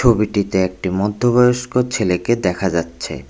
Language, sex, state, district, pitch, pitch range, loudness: Bengali, male, Tripura, West Tripura, 100 Hz, 90-120 Hz, -18 LUFS